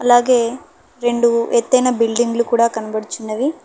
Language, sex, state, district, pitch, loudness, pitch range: Telugu, female, Telangana, Hyderabad, 235 Hz, -17 LUFS, 230-245 Hz